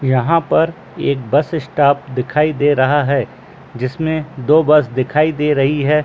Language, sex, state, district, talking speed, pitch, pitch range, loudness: Hindi, male, Uttar Pradesh, Muzaffarnagar, 160 wpm, 145 Hz, 135-155 Hz, -16 LUFS